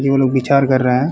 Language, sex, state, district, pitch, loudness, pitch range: Hindi, male, Uttar Pradesh, Varanasi, 135 Hz, -15 LUFS, 130-140 Hz